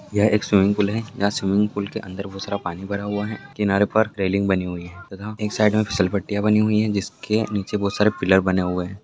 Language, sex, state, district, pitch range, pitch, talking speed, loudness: Maithili, male, Bihar, Purnia, 95-105 Hz, 100 Hz, 245 wpm, -22 LUFS